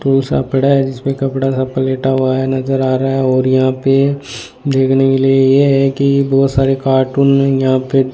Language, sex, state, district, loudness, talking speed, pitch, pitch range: Hindi, male, Rajasthan, Bikaner, -13 LUFS, 220 wpm, 135 Hz, 130-135 Hz